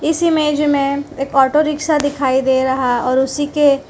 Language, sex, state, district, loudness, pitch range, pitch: Hindi, female, Gujarat, Valsad, -16 LUFS, 265-300 Hz, 280 Hz